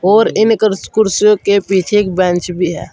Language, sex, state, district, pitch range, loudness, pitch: Hindi, male, Uttar Pradesh, Saharanpur, 180-210 Hz, -13 LUFS, 200 Hz